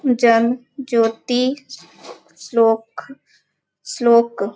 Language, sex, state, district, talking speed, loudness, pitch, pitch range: Hindi, female, Bihar, Muzaffarpur, 65 wpm, -17 LUFS, 235 Hz, 230-255 Hz